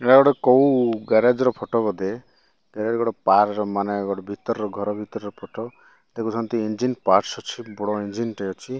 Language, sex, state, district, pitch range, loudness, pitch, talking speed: Odia, male, Odisha, Malkangiri, 105-120 Hz, -22 LUFS, 110 Hz, 170 wpm